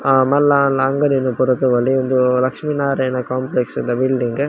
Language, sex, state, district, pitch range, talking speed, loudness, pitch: Tulu, male, Karnataka, Dakshina Kannada, 130-140 Hz, 175 wpm, -17 LUFS, 130 Hz